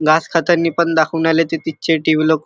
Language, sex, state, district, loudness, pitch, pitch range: Marathi, male, Maharashtra, Chandrapur, -16 LUFS, 165 Hz, 160-165 Hz